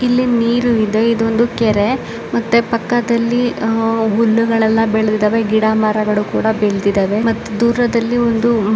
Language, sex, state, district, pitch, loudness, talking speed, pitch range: Kannada, female, Karnataka, Shimoga, 225 Hz, -15 LUFS, 115 wpm, 215-235 Hz